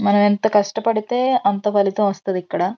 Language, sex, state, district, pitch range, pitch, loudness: Telugu, female, Andhra Pradesh, Guntur, 200-220 Hz, 205 Hz, -19 LUFS